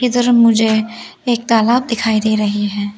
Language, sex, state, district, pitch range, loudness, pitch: Hindi, female, Arunachal Pradesh, Lower Dibang Valley, 215-240 Hz, -14 LUFS, 225 Hz